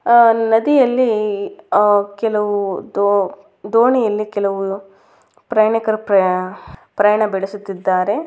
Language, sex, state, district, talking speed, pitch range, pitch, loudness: Kannada, female, Karnataka, Dakshina Kannada, 65 wpm, 200-225 Hz, 205 Hz, -16 LUFS